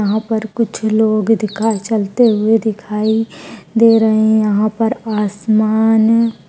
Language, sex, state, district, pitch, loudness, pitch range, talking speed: Hindi, female, Uttar Pradesh, Etah, 220 Hz, -14 LUFS, 215-225 Hz, 130 wpm